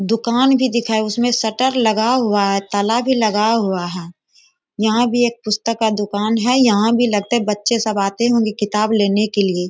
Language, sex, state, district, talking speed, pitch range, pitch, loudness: Hindi, female, Bihar, Bhagalpur, 210 wpm, 205-240 Hz, 220 Hz, -17 LUFS